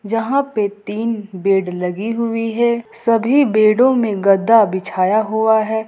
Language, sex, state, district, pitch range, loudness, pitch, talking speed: Hindi, female, Jharkhand, Ranchi, 205-230 Hz, -16 LUFS, 220 Hz, 145 wpm